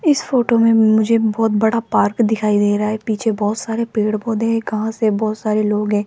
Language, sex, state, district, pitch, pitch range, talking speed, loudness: Hindi, female, Rajasthan, Jaipur, 220 Hz, 215-230 Hz, 225 wpm, -17 LUFS